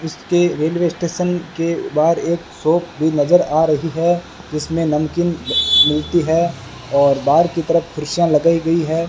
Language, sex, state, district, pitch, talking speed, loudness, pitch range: Hindi, male, Rajasthan, Bikaner, 165 Hz, 160 wpm, -17 LUFS, 155-170 Hz